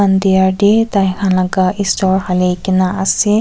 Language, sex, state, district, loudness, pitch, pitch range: Nagamese, female, Nagaland, Kohima, -14 LUFS, 190 Hz, 185-200 Hz